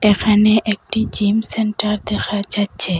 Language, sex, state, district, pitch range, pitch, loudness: Bengali, female, Assam, Hailakandi, 205-215 Hz, 210 Hz, -17 LUFS